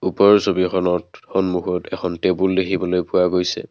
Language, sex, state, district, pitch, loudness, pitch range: Assamese, male, Assam, Kamrup Metropolitan, 90 Hz, -19 LUFS, 90-95 Hz